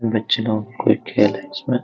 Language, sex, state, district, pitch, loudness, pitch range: Hindi, male, Bihar, Araria, 110 Hz, -20 LUFS, 105-125 Hz